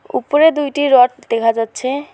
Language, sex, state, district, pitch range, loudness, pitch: Bengali, female, West Bengal, Alipurduar, 230-290 Hz, -15 LUFS, 260 Hz